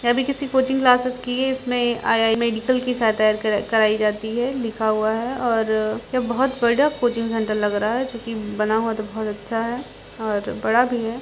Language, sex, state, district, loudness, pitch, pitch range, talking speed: Hindi, female, Bihar, Purnia, -21 LUFS, 230 Hz, 220-250 Hz, 225 wpm